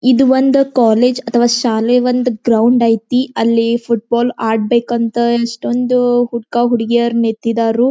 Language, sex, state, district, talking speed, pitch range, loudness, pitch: Kannada, female, Karnataka, Belgaum, 115 wpm, 230-245 Hz, -14 LUFS, 235 Hz